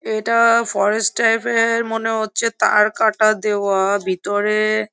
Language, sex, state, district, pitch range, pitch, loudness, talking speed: Bengali, female, West Bengal, Jhargram, 210-225 Hz, 215 Hz, -17 LUFS, 110 wpm